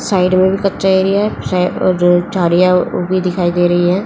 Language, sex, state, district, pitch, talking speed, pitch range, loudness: Hindi, female, Haryana, Jhajjar, 185 Hz, 205 wpm, 175-190 Hz, -13 LUFS